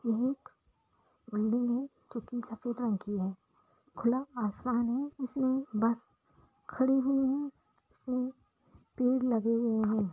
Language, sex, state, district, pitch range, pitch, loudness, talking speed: Hindi, female, Bihar, Darbhanga, 225-260 Hz, 240 Hz, -32 LUFS, 135 wpm